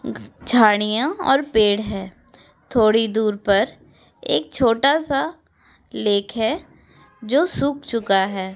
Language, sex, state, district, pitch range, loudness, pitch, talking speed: Hindi, female, Uttar Pradesh, Etah, 205-275 Hz, -19 LUFS, 225 Hz, 110 wpm